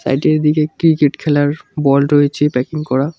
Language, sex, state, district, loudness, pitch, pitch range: Bengali, male, West Bengal, Cooch Behar, -15 LUFS, 150 Hz, 145-155 Hz